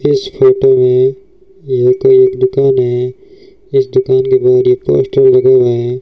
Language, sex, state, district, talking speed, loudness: Hindi, male, Rajasthan, Bikaner, 160 wpm, -10 LUFS